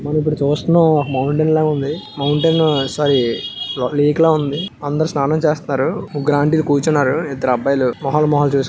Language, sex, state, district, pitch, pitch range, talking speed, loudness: Telugu, male, Andhra Pradesh, Visakhapatnam, 145 Hz, 140-155 Hz, 160 wpm, -17 LUFS